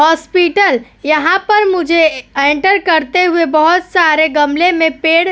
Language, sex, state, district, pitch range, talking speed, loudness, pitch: Hindi, female, Uttar Pradesh, Etah, 310-360 Hz, 145 wpm, -11 LUFS, 335 Hz